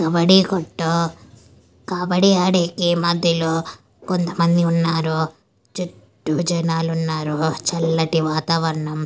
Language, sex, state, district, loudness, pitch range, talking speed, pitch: Telugu, female, Andhra Pradesh, Anantapur, -19 LUFS, 160-175 Hz, 80 wpm, 165 Hz